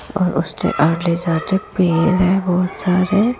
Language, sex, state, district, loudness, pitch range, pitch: Hindi, female, Rajasthan, Jaipur, -17 LUFS, 170-190 Hz, 180 Hz